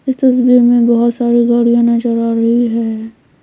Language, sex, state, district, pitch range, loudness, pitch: Hindi, female, Bihar, Patna, 230-240 Hz, -12 LUFS, 235 Hz